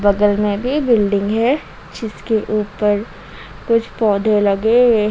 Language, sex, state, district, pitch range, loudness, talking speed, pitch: Hindi, female, Jharkhand, Ranchi, 205-230 Hz, -16 LUFS, 130 wpm, 215 Hz